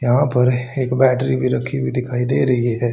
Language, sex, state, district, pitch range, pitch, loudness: Hindi, male, Haryana, Charkhi Dadri, 120-125 Hz, 125 Hz, -18 LUFS